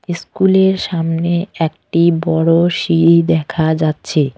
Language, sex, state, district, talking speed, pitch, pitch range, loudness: Bengali, female, West Bengal, Cooch Behar, 95 wpm, 165 Hz, 160-175 Hz, -14 LUFS